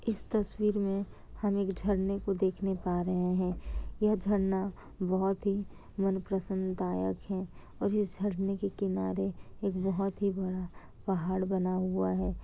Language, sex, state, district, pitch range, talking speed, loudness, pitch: Hindi, female, Bihar, Kishanganj, 185-200 Hz, 155 wpm, -33 LUFS, 190 Hz